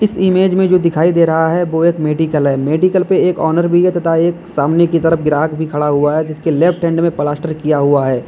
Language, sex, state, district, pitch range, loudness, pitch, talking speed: Hindi, male, Uttar Pradesh, Lalitpur, 155-175 Hz, -13 LUFS, 165 Hz, 255 wpm